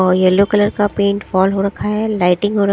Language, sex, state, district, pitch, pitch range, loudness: Hindi, female, Himachal Pradesh, Shimla, 200 Hz, 190-205 Hz, -15 LUFS